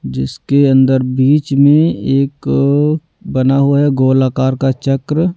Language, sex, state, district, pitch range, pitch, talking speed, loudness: Hindi, male, Delhi, New Delhi, 130-145 Hz, 135 Hz, 125 wpm, -13 LUFS